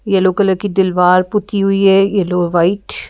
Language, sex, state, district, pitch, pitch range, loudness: Hindi, female, Madhya Pradesh, Bhopal, 195 Hz, 180-200 Hz, -14 LUFS